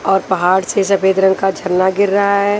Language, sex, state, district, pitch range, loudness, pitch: Hindi, female, Chhattisgarh, Raipur, 190-200 Hz, -14 LUFS, 195 Hz